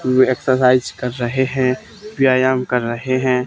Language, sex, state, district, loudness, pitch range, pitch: Hindi, male, Haryana, Charkhi Dadri, -17 LUFS, 125-130 Hz, 130 Hz